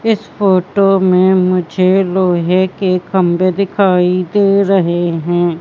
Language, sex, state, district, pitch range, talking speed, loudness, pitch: Hindi, female, Madhya Pradesh, Katni, 180-195 Hz, 120 wpm, -13 LUFS, 185 Hz